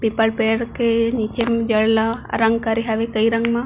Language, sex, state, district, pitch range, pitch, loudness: Chhattisgarhi, female, Chhattisgarh, Bilaspur, 225-230 Hz, 225 Hz, -19 LUFS